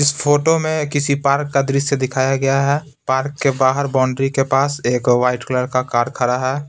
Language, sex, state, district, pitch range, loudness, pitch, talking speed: Hindi, male, Bihar, Patna, 130-145 Hz, -17 LUFS, 135 Hz, 205 wpm